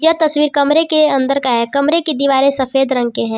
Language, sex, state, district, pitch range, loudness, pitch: Hindi, female, Jharkhand, Palamu, 265-305 Hz, -14 LUFS, 280 Hz